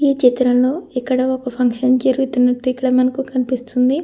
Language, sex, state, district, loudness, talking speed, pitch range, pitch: Telugu, female, Andhra Pradesh, Anantapur, -17 LUFS, 135 wpm, 250-260 Hz, 255 Hz